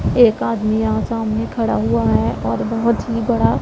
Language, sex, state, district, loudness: Hindi, female, Punjab, Pathankot, -18 LUFS